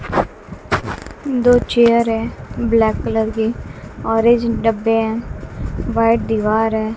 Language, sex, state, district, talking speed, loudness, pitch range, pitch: Hindi, female, Bihar, West Champaran, 105 wpm, -17 LUFS, 220-235 Hz, 225 Hz